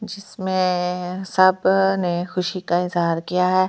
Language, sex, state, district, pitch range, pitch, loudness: Hindi, female, Delhi, New Delhi, 180-190 Hz, 185 Hz, -20 LUFS